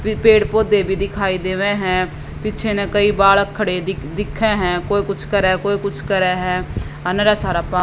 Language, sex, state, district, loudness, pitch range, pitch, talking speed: Hindi, female, Haryana, Jhajjar, -18 LUFS, 185-205 Hz, 195 Hz, 190 wpm